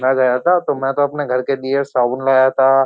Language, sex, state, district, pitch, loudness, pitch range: Hindi, male, Uttar Pradesh, Jyotiba Phule Nagar, 135 Hz, -16 LUFS, 130-140 Hz